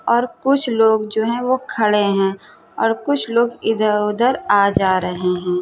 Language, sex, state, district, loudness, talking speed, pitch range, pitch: Hindi, female, Uttar Pradesh, Hamirpur, -18 LUFS, 170 wpm, 200-240 Hz, 220 Hz